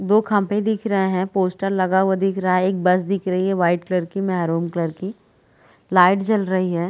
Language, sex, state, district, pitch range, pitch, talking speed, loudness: Hindi, female, Chhattisgarh, Bilaspur, 180-195 Hz, 185 Hz, 235 wpm, -20 LUFS